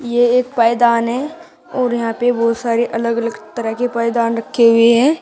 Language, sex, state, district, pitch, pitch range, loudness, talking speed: Hindi, female, Uttar Pradesh, Shamli, 235 Hz, 230-245 Hz, -15 LUFS, 195 wpm